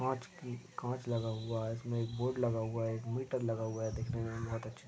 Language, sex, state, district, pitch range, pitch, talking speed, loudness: Hindi, male, Maharashtra, Sindhudurg, 115-125 Hz, 115 Hz, 270 wpm, -38 LUFS